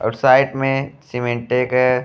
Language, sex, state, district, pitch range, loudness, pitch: Bhojpuri, male, Uttar Pradesh, Deoria, 125-135 Hz, -18 LUFS, 125 Hz